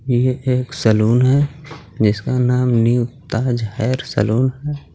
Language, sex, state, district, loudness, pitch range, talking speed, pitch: Hindi, male, Jharkhand, Garhwa, -17 LUFS, 115-135 Hz, 135 wpm, 125 Hz